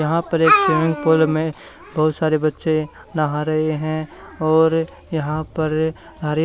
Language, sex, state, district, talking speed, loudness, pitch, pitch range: Hindi, male, Haryana, Charkhi Dadri, 150 wpm, -19 LUFS, 155 Hz, 155-160 Hz